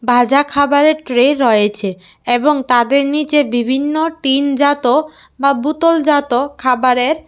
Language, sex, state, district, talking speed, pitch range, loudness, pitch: Bengali, female, Tripura, West Tripura, 105 wpm, 245-295 Hz, -13 LUFS, 275 Hz